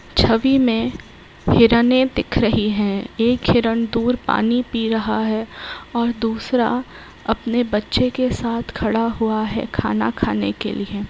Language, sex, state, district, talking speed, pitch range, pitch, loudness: Hindi, female, Uttar Pradesh, Varanasi, 140 wpm, 215-240 Hz, 230 Hz, -19 LUFS